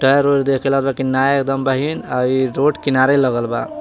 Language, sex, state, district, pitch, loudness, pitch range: Bhojpuri, male, Jharkhand, Palamu, 135 Hz, -16 LUFS, 130-140 Hz